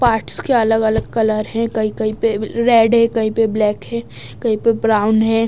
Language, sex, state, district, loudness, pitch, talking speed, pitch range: Hindi, female, Odisha, Nuapada, -16 LUFS, 225 Hz, 185 wpm, 215-230 Hz